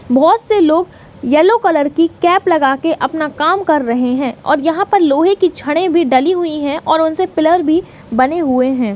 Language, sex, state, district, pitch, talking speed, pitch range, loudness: Hindi, female, Uttar Pradesh, Hamirpur, 320 Hz, 210 wpm, 280-350 Hz, -13 LUFS